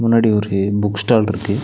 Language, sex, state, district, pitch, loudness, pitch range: Tamil, male, Tamil Nadu, Nilgiris, 105 Hz, -17 LUFS, 100-115 Hz